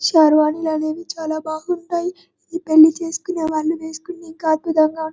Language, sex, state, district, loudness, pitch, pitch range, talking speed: Telugu, male, Telangana, Karimnagar, -18 LUFS, 320 Hz, 315-340 Hz, 130 wpm